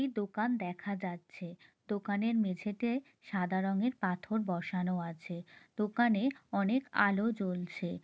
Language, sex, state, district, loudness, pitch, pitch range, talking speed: Bengali, female, West Bengal, Jalpaiguri, -34 LUFS, 200 Hz, 180-220 Hz, 110 wpm